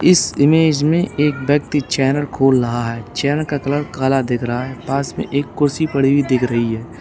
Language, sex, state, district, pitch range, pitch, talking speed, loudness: Hindi, male, Uttar Pradesh, Lalitpur, 125-145 Hz, 140 Hz, 205 wpm, -17 LUFS